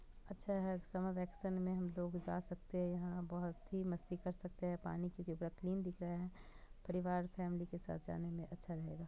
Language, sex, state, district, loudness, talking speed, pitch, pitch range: Hindi, female, Bihar, Purnia, -44 LUFS, 210 wpm, 180 Hz, 175-185 Hz